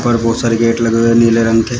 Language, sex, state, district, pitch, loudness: Hindi, male, Uttar Pradesh, Shamli, 115 Hz, -12 LUFS